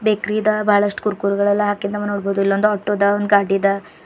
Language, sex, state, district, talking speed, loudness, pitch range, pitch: Kannada, female, Karnataka, Bidar, 175 wpm, -18 LUFS, 200-210 Hz, 205 Hz